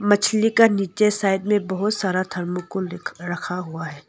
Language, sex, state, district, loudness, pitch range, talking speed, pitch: Hindi, female, Arunachal Pradesh, Longding, -22 LUFS, 180-210 Hz, 160 wpm, 190 Hz